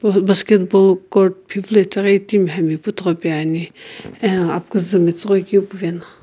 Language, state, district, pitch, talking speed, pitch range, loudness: Sumi, Nagaland, Kohima, 190 Hz, 115 wpm, 175-200 Hz, -16 LUFS